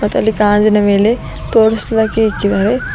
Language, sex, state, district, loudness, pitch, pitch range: Kannada, female, Karnataka, Bidar, -13 LUFS, 215 Hz, 205-220 Hz